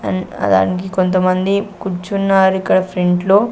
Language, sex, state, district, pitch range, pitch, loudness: Telugu, female, Andhra Pradesh, Sri Satya Sai, 180-195 Hz, 185 Hz, -16 LUFS